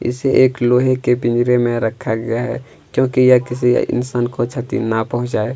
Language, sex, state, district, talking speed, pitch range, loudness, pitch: Hindi, male, Chhattisgarh, Kabirdham, 185 wpm, 120-125 Hz, -17 LUFS, 120 Hz